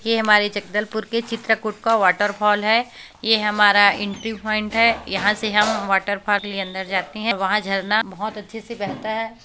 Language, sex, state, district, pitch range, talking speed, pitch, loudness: Hindi, female, Chhattisgarh, Bastar, 205-220 Hz, 185 wpm, 210 Hz, -20 LUFS